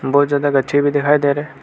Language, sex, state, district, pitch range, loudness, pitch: Hindi, male, Arunachal Pradesh, Lower Dibang Valley, 140-145 Hz, -16 LUFS, 145 Hz